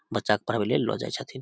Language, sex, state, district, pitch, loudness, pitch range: Maithili, male, Bihar, Samastipur, 115 Hz, -27 LUFS, 105-130 Hz